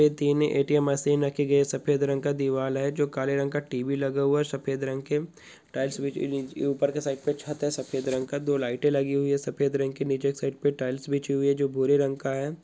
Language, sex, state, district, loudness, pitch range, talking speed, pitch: Hindi, male, Goa, North and South Goa, -27 LUFS, 135-145 Hz, 255 wpm, 140 Hz